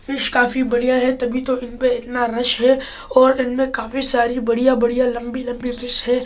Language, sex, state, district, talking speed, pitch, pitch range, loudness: Hindi, male, Delhi, New Delhi, 210 wpm, 250 Hz, 245-260 Hz, -18 LUFS